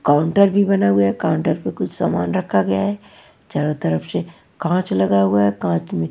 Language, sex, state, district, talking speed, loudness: Hindi, female, Punjab, Pathankot, 205 wpm, -19 LUFS